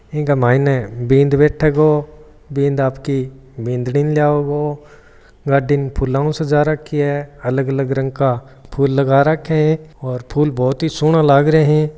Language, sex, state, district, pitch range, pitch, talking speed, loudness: Marwari, male, Rajasthan, Churu, 135-150 Hz, 140 Hz, 165 wpm, -16 LUFS